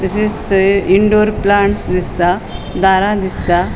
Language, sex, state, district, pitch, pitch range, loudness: Konkani, female, Goa, North and South Goa, 195 Hz, 185-205 Hz, -13 LUFS